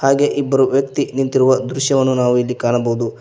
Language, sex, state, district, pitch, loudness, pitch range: Kannada, male, Karnataka, Koppal, 130 Hz, -16 LUFS, 125-135 Hz